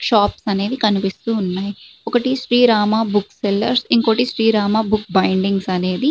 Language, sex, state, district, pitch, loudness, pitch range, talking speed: Telugu, female, Andhra Pradesh, Srikakulam, 215 Hz, -17 LUFS, 200-235 Hz, 135 wpm